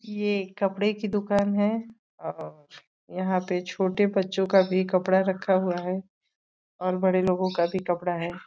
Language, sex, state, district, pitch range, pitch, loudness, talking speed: Hindi, female, Uttar Pradesh, Deoria, 185-200 Hz, 190 Hz, -26 LUFS, 165 wpm